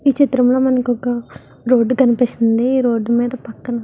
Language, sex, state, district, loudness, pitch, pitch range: Telugu, female, Andhra Pradesh, Visakhapatnam, -16 LUFS, 245 Hz, 235-255 Hz